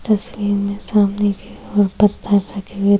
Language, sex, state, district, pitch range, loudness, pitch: Hindi, female, Uttar Pradesh, Jyotiba Phule Nagar, 200-205 Hz, -18 LUFS, 205 Hz